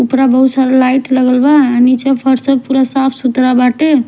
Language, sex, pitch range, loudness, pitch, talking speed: Bhojpuri, female, 255-270 Hz, -11 LUFS, 260 Hz, 190 wpm